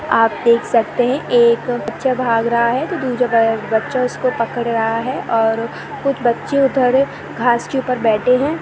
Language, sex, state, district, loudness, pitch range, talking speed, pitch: Hindi, female, Chhattisgarh, Kabirdham, -17 LUFS, 230-255 Hz, 175 wpm, 240 Hz